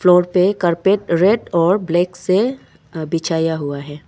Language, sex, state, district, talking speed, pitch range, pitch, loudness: Hindi, female, Arunachal Pradesh, Longding, 145 wpm, 165-190 Hz, 175 Hz, -17 LUFS